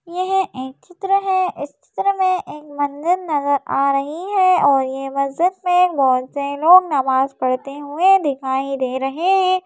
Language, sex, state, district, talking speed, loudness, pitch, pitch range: Hindi, female, Madhya Pradesh, Bhopal, 170 wpm, -18 LUFS, 290 Hz, 275-370 Hz